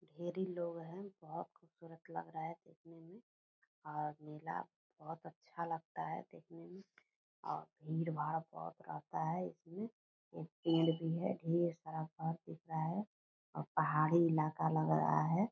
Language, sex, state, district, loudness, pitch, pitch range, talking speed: Hindi, female, Bihar, Purnia, -40 LUFS, 165 Hz, 160-170 Hz, 155 wpm